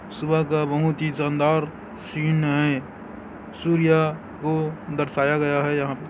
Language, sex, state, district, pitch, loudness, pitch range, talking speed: Chhattisgarhi, male, Chhattisgarh, Korba, 155 Hz, -23 LUFS, 145-160 Hz, 140 wpm